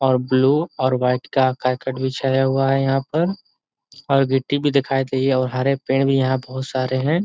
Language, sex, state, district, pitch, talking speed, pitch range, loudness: Hindi, male, Uttar Pradesh, Ghazipur, 135 Hz, 200 wpm, 130-135 Hz, -20 LUFS